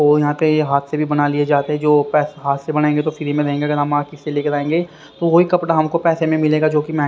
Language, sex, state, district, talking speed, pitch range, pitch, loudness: Hindi, male, Haryana, Rohtak, 295 wpm, 145-155 Hz, 150 Hz, -17 LUFS